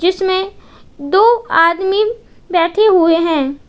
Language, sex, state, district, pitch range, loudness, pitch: Hindi, female, Uttar Pradesh, Lalitpur, 330-410 Hz, -13 LUFS, 370 Hz